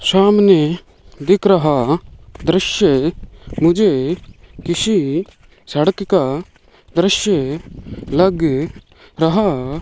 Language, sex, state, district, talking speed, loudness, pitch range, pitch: Hindi, male, Rajasthan, Bikaner, 75 wpm, -16 LUFS, 155-195 Hz, 175 Hz